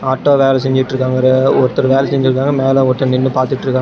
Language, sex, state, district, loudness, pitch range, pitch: Tamil, male, Tamil Nadu, Namakkal, -13 LUFS, 130-135 Hz, 130 Hz